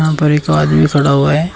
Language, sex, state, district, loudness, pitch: Hindi, male, Uttar Pradesh, Shamli, -12 LUFS, 145 Hz